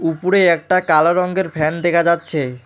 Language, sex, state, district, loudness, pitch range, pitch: Bengali, male, West Bengal, Alipurduar, -16 LUFS, 155-180 Hz, 170 Hz